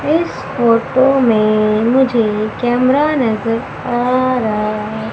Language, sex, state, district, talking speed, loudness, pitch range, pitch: Hindi, female, Madhya Pradesh, Umaria, 105 wpm, -15 LUFS, 215-255 Hz, 235 Hz